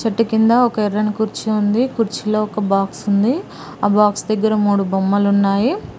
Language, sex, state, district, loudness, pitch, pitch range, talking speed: Telugu, female, Telangana, Mahabubabad, -17 LUFS, 215 Hz, 205-225 Hz, 160 wpm